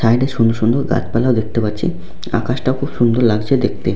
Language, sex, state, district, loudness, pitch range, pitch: Bengali, male, West Bengal, Paschim Medinipur, -17 LUFS, 110-125 Hz, 115 Hz